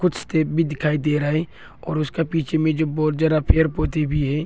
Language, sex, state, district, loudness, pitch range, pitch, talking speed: Hindi, male, Arunachal Pradesh, Longding, -21 LUFS, 150-160 Hz, 155 Hz, 230 wpm